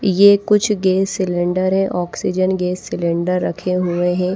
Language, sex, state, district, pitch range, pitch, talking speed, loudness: Hindi, female, Odisha, Malkangiri, 180-195 Hz, 185 Hz, 150 wpm, -17 LUFS